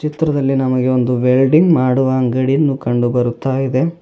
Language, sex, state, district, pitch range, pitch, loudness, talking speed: Kannada, male, Karnataka, Bidar, 125-140 Hz, 130 Hz, -15 LUFS, 135 wpm